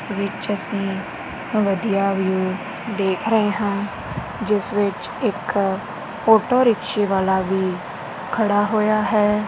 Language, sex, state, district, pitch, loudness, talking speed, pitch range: Punjabi, female, Punjab, Kapurthala, 205 Hz, -21 LUFS, 115 wpm, 195-215 Hz